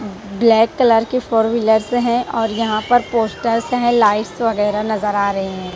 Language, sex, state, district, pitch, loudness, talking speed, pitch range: Hindi, female, Punjab, Kapurthala, 225 Hz, -16 LUFS, 175 wpm, 210-235 Hz